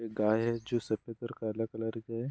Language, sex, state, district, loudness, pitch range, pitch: Hindi, male, Bihar, Bhagalpur, -34 LUFS, 110-115 Hz, 115 Hz